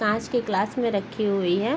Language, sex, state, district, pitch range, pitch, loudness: Hindi, female, Uttar Pradesh, Gorakhpur, 200-230 Hz, 210 Hz, -25 LUFS